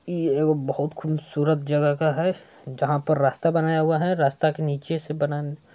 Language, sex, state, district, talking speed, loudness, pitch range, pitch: Hindi, male, Bihar, Saran, 190 wpm, -23 LUFS, 145-160 Hz, 155 Hz